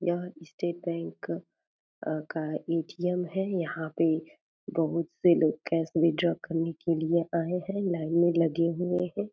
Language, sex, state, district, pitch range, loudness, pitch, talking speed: Hindi, female, Bihar, Purnia, 165-180 Hz, -29 LUFS, 170 Hz, 150 wpm